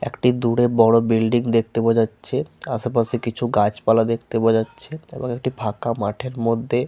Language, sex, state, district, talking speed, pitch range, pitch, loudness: Bengali, male, West Bengal, Paschim Medinipur, 155 wpm, 115-120 Hz, 115 Hz, -20 LUFS